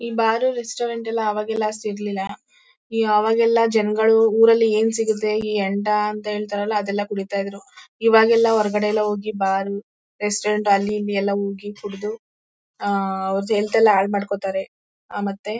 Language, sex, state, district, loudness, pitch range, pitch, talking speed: Kannada, female, Karnataka, Mysore, -20 LUFS, 200-225 Hz, 210 Hz, 140 wpm